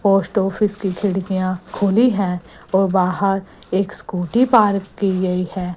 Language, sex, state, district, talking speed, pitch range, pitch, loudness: Hindi, female, Gujarat, Gandhinagar, 145 wpm, 185-200 Hz, 195 Hz, -19 LUFS